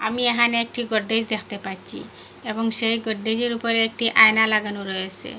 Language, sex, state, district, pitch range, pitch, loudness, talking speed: Bengali, female, Assam, Hailakandi, 215-230 Hz, 220 Hz, -20 LUFS, 155 wpm